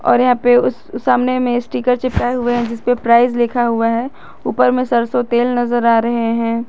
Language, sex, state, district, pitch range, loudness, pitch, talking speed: Hindi, female, Jharkhand, Garhwa, 235-245 Hz, -15 LUFS, 240 Hz, 215 wpm